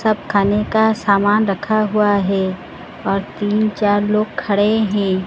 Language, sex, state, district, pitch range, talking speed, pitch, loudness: Hindi, female, Odisha, Sambalpur, 200-215 Hz, 150 wpm, 205 Hz, -17 LUFS